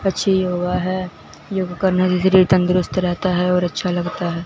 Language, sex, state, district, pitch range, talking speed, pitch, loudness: Hindi, male, Punjab, Fazilka, 180-185 Hz, 160 wpm, 180 Hz, -18 LUFS